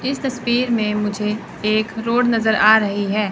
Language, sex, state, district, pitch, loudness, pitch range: Hindi, female, Chandigarh, Chandigarh, 220 Hz, -18 LUFS, 210-240 Hz